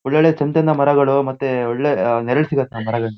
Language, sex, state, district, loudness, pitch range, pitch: Kannada, male, Karnataka, Shimoga, -17 LUFS, 120-145 Hz, 135 Hz